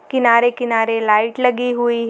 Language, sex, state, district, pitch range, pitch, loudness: Hindi, female, Jharkhand, Garhwa, 225-245 Hz, 235 Hz, -16 LUFS